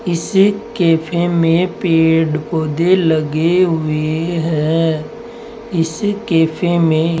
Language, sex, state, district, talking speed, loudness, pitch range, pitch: Hindi, male, Rajasthan, Jaipur, 100 wpm, -15 LUFS, 160-180 Hz, 165 Hz